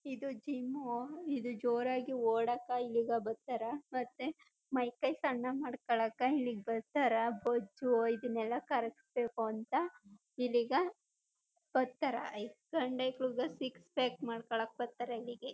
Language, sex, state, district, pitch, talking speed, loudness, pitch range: Kannada, female, Karnataka, Chamarajanagar, 245 Hz, 105 wpm, -37 LUFS, 235-270 Hz